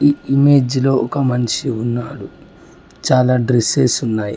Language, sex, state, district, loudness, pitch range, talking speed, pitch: Telugu, male, Telangana, Mahabubabad, -16 LUFS, 120-135 Hz, 125 wpm, 125 Hz